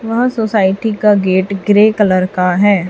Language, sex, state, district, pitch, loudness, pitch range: Hindi, female, Chhattisgarh, Raipur, 205 Hz, -13 LUFS, 190-215 Hz